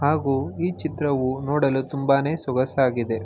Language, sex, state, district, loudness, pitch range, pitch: Kannada, male, Karnataka, Mysore, -23 LUFS, 130-145 Hz, 140 Hz